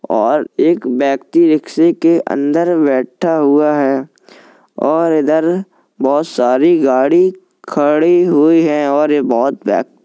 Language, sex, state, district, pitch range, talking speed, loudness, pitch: Hindi, male, Uttar Pradesh, Jalaun, 145-170 Hz, 125 wpm, -13 LUFS, 155 Hz